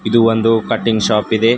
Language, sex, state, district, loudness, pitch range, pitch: Kannada, male, Karnataka, Bidar, -14 LUFS, 110-115 Hz, 115 Hz